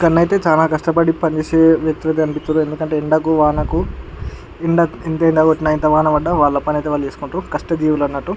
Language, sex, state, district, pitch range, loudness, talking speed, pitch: Telugu, male, Andhra Pradesh, Guntur, 150-165 Hz, -16 LUFS, 165 wpm, 155 Hz